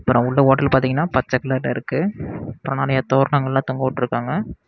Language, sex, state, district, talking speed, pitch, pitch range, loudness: Tamil, male, Tamil Nadu, Namakkal, 140 wpm, 130 Hz, 130-135 Hz, -20 LUFS